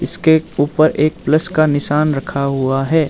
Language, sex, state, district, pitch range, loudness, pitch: Hindi, male, Arunachal Pradesh, Lower Dibang Valley, 140-155 Hz, -15 LUFS, 150 Hz